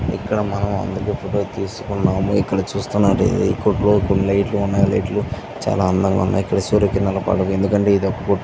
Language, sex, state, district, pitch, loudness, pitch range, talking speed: Telugu, male, Andhra Pradesh, Visakhapatnam, 100 Hz, -19 LUFS, 95-100 Hz, 140 wpm